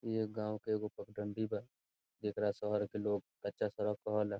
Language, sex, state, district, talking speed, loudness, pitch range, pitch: Bhojpuri, male, Bihar, Saran, 190 wpm, -39 LUFS, 105-110 Hz, 105 Hz